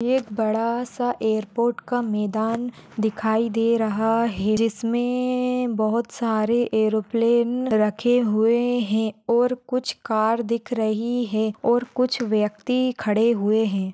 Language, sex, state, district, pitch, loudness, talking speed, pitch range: Hindi, female, Maharashtra, Nagpur, 230 Hz, -22 LUFS, 125 wpm, 220-245 Hz